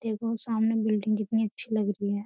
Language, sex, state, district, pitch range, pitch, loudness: Hindi, female, Uttar Pradesh, Jyotiba Phule Nagar, 210-225 Hz, 220 Hz, -28 LUFS